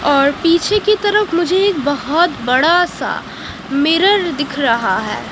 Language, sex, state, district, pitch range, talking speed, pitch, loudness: Hindi, female, Haryana, Jhajjar, 280-375 Hz, 145 wpm, 330 Hz, -15 LUFS